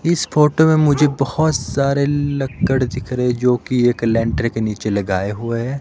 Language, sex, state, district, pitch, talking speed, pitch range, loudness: Hindi, male, Himachal Pradesh, Shimla, 130 Hz, 185 wpm, 115-145 Hz, -17 LUFS